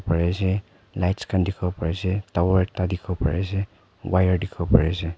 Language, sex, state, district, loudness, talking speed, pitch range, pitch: Nagamese, male, Nagaland, Kohima, -24 LUFS, 210 wpm, 90-95 Hz, 90 Hz